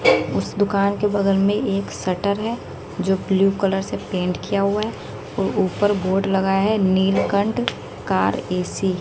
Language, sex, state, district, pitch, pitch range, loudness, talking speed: Hindi, female, Haryana, Jhajjar, 195 Hz, 190-200 Hz, -21 LUFS, 175 wpm